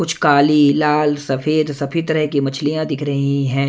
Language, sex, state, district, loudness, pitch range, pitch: Hindi, male, Punjab, Kapurthala, -17 LUFS, 140-150 Hz, 145 Hz